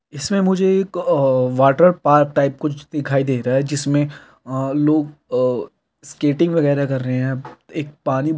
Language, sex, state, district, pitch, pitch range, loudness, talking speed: Hindi, male, Jharkhand, Jamtara, 145 Hz, 135-155 Hz, -18 LUFS, 170 wpm